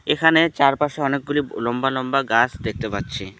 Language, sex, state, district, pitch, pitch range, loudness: Bengali, male, West Bengal, Alipurduar, 135 Hz, 115-145 Hz, -20 LUFS